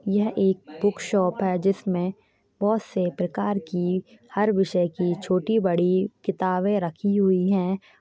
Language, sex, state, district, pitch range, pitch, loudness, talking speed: Hindi, female, Chhattisgarh, Jashpur, 180-205 Hz, 190 Hz, -24 LUFS, 140 wpm